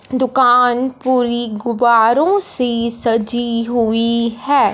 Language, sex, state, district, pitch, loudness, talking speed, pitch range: Hindi, female, Punjab, Fazilka, 240 Hz, -15 LUFS, 90 wpm, 235-255 Hz